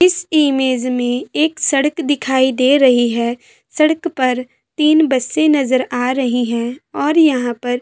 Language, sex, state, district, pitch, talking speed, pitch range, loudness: Hindi, female, Bihar, Sitamarhi, 265 Hz, 155 wpm, 245-305 Hz, -15 LUFS